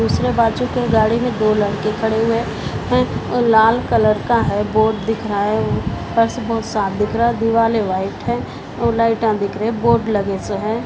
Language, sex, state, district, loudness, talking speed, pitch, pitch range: Hindi, female, Bihar, Purnia, -17 LUFS, 205 wpm, 220 Hz, 210-230 Hz